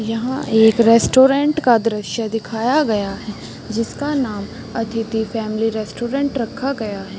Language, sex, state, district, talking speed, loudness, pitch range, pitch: Hindi, female, Uttar Pradesh, Deoria, 135 wpm, -18 LUFS, 220-255 Hz, 225 Hz